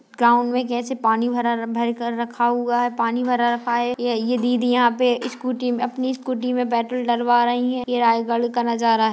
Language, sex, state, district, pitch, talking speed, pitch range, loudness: Hindi, female, Chhattisgarh, Raigarh, 240 Hz, 205 wpm, 235-245 Hz, -21 LUFS